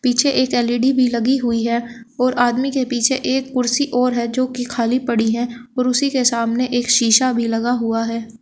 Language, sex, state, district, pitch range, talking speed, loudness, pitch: Hindi, female, Uttar Pradesh, Shamli, 235-255 Hz, 215 wpm, -18 LUFS, 245 Hz